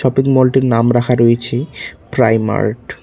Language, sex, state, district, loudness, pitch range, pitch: Bengali, male, West Bengal, Cooch Behar, -14 LUFS, 115-130 Hz, 120 Hz